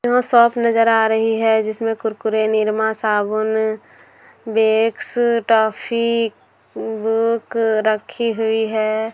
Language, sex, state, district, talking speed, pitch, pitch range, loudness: Hindi, female, Bihar, Darbhanga, 110 wpm, 220 Hz, 220-230 Hz, -18 LUFS